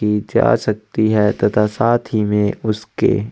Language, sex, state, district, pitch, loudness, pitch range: Hindi, male, Chhattisgarh, Sukma, 105 Hz, -17 LUFS, 105-110 Hz